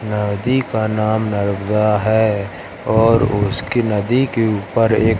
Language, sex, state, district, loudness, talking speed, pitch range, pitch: Hindi, male, Madhya Pradesh, Katni, -17 LUFS, 125 wpm, 105-115 Hz, 110 Hz